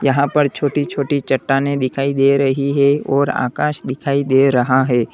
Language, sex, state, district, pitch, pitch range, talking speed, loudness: Hindi, male, Uttar Pradesh, Lalitpur, 140 Hz, 135-140 Hz, 175 wpm, -16 LUFS